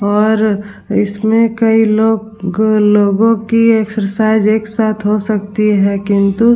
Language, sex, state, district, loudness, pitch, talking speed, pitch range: Hindi, female, Bihar, Vaishali, -13 LUFS, 215 Hz, 130 wpm, 205-220 Hz